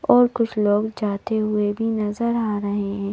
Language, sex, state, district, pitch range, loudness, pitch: Hindi, female, Madhya Pradesh, Bhopal, 205-225 Hz, -22 LUFS, 210 Hz